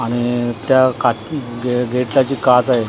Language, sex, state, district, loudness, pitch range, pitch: Marathi, male, Maharashtra, Mumbai Suburban, -16 LUFS, 120-130 Hz, 125 Hz